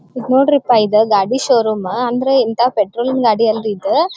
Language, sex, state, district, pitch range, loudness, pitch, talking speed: Kannada, female, Karnataka, Dharwad, 220-265 Hz, -14 LUFS, 245 Hz, 145 wpm